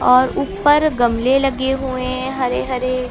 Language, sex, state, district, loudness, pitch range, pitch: Hindi, female, Uttar Pradesh, Lucknow, -17 LUFS, 255-270 Hz, 255 Hz